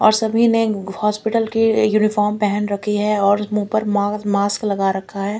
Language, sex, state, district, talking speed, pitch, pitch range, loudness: Hindi, female, Chandigarh, Chandigarh, 190 wpm, 210 Hz, 205-215 Hz, -18 LUFS